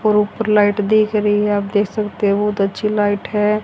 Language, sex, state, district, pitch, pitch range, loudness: Hindi, female, Haryana, Rohtak, 210 Hz, 205-210 Hz, -17 LUFS